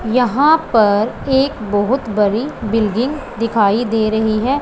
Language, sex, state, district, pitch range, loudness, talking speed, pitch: Hindi, female, Punjab, Pathankot, 215-265 Hz, -16 LUFS, 130 wpm, 225 Hz